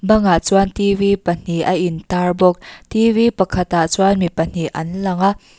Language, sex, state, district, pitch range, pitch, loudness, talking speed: Mizo, female, Mizoram, Aizawl, 175-200 Hz, 185 Hz, -17 LUFS, 205 wpm